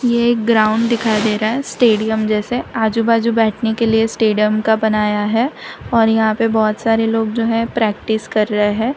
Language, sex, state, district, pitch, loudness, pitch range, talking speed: Hindi, female, Gujarat, Valsad, 220 Hz, -16 LUFS, 215-230 Hz, 200 wpm